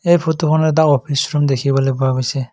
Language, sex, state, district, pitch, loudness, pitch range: Assamese, male, Assam, Kamrup Metropolitan, 140 Hz, -16 LUFS, 135-155 Hz